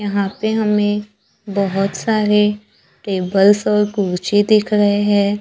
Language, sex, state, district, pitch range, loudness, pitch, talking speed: Hindi, female, Maharashtra, Gondia, 200-210 Hz, -16 LUFS, 205 Hz, 120 wpm